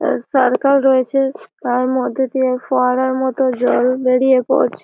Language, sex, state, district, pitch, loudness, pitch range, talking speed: Bengali, female, West Bengal, Malda, 260 Hz, -16 LUFS, 255-265 Hz, 135 wpm